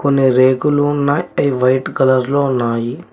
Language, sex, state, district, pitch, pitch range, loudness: Telugu, male, Telangana, Mahabubabad, 135 Hz, 130-145 Hz, -15 LUFS